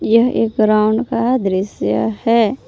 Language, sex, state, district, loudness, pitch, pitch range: Hindi, female, Jharkhand, Palamu, -16 LUFS, 225 Hz, 215-235 Hz